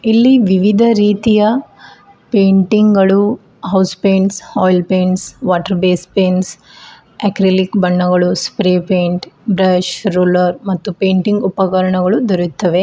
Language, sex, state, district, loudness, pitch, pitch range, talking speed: Kannada, female, Karnataka, Bidar, -13 LUFS, 190 Hz, 180-205 Hz, 105 wpm